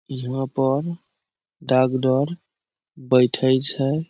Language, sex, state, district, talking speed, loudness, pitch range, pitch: Maithili, male, Bihar, Samastipur, 75 wpm, -21 LUFS, 130-145 Hz, 135 Hz